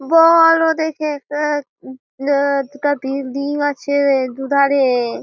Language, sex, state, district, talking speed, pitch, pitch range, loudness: Bengali, female, West Bengal, Malda, 140 wpm, 280 Hz, 270-295 Hz, -16 LUFS